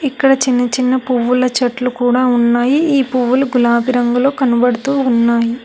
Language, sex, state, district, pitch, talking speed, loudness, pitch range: Telugu, female, Telangana, Hyderabad, 250 Hz, 140 wpm, -14 LUFS, 245-260 Hz